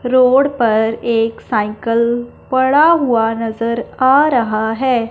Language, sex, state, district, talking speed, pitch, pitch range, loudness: Hindi, female, Punjab, Fazilka, 120 wpm, 235 Hz, 225-260 Hz, -15 LUFS